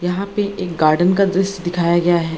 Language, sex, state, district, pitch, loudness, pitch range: Hindi, female, Bihar, Gaya, 175 Hz, -17 LUFS, 170-195 Hz